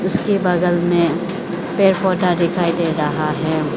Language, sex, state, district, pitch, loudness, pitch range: Hindi, female, Arunachal Pradesh, Lower Dibang Valley, 175 Hz, -17 LUFS, 165-185 Hz